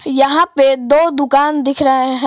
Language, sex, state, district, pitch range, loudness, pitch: Hindi, female, Jharkhand, Palamu, 270-295 Hz, -12 LUFS, 275 Hz